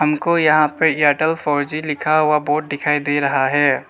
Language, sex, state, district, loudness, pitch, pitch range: Hindi, male, Arunachal Pradesh, Lower Dibang Valley, -17 LUFS, 150 Hz, 145-155 Hz